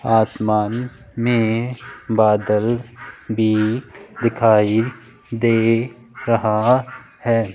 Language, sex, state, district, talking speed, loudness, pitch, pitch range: Hindi, male, Rajasthan, Jaipur, 65 wpm, -19 LUFS, 115 Hz, 110-120 Hz